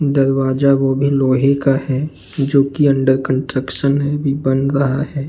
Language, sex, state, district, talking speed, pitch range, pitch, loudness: Hindi, male, Uttar Pradesh, Jalaun, 160 wpm, 135-140 Hz, 140 Hz, -16 LUFS